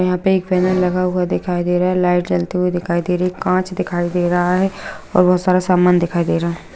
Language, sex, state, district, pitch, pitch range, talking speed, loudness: Hindi, female, Bihar, Araria, 180 Hz, 175-185 Hz, 265 wpm, -17 LUFS